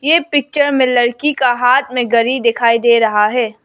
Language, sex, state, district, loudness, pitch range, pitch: Hindi, female, Arunachal Pradesh, Lower Dibang Valley, -13 LUFS, 235-275 Hz, 245 Hz